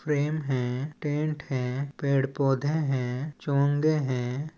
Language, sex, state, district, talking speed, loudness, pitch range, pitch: Chhattisgarhi, male, Chhattisgarh, Balrampur, 80 wpm, -28 LUFS, 130-150 Hz, 140 Hz